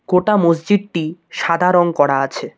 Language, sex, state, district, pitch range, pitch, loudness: Bengali, male, West Bengal, Cooch Behar, 165-180 Hz, 170 Hz, -16 LUFS